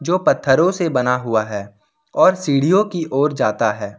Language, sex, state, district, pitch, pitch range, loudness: Hindi, male, Jharkhand, Ranchi, 140 Hz, 110-175 Hz, -17 LUFS